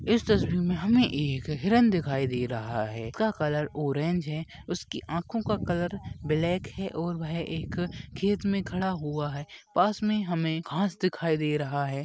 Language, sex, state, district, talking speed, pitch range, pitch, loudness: Hindi, male, Jharkhand, Sahebganj, 185 wpm, 145-190 Hz, 165 Hz, -28 LUFS